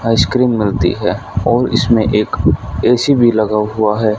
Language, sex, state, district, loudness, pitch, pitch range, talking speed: Hindi, male, Haryana, Rohtak, -14 LUFS, 110 Hz, 105-120 Hz, 155 wpm